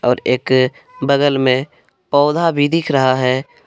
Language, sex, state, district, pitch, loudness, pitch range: Hindi, male, Jharkhand, Palamu, 140 Hz, -16 LUFS, 130-150 Hz